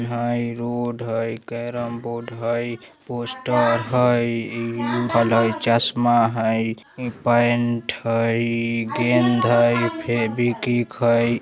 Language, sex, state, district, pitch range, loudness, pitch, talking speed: Bajjika, male, Bihar, Vaishali, 115-120 Hz, -21 LUFS, 120 Hz, 100 wpm